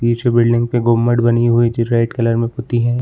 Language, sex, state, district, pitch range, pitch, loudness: Hindi, male, Bihar, Saran, 115-120 Hz, 120 Hz, -15 LUFS